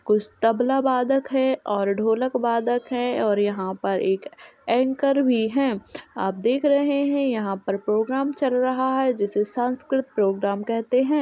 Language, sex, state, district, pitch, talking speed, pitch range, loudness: Hindi, female, Uttar Pradesh, Jalaun, 245 Hz, 160 wpm, 210-265 Hz, -23 LUFS